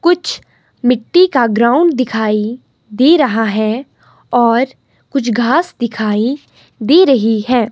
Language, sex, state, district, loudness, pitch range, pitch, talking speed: Hindi, female, Himachal Pradesh, Shimla, -13 LUFS, 225-275 Hz, 245 Hz, 115 wpm